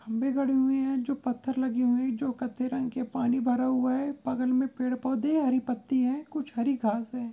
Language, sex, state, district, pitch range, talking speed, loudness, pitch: Hindi, female, Goa, North and South Goa, 250-265 Hz, 230 wpm, -28 LUFS, 255 Hz